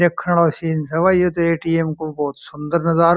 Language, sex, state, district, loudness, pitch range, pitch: Marwari, male, Rajasthan, Churu, -18 LUFS, 155-170 Hz, 165 Hz